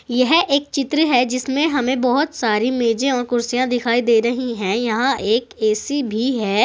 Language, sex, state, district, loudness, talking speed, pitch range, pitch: Hindi, female, Uttar Pradesh, Saharanpur, -18 LUFS, 180 wpm, 235-270 Hz, 250 Hz